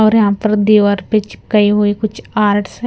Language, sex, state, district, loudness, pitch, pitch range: Hindi, female, Punjab, Kapurthala, -14 LUFS, 210 Hz, 205-215 Hz